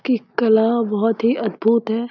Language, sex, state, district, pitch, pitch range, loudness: Hindi, female, Bihar, Jahanabad, 230 Hz, 220-235 Hz, -18 LUFS